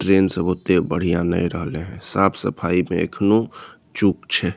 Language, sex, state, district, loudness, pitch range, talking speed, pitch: Maithili, male, Bihar, Saharsa, -20 LUFS, 85-95 Hz, 160 wpm, 90 Hz